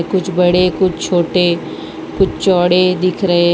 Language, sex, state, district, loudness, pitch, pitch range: Hindi, female, Gujarat, Valsad, -14 LUFS, 180 Hz, 175-185 Hz